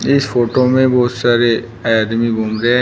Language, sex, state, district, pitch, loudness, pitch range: Hindi, male, Uttar Pradesh, Shamli, 120 Hz, -14 LUFS, 115-125 Hz